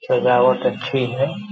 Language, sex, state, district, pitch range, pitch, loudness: Hindi, male, Bihar, Muzaffarpur, 125-205 Hz, 135 Hz, -18 LUFS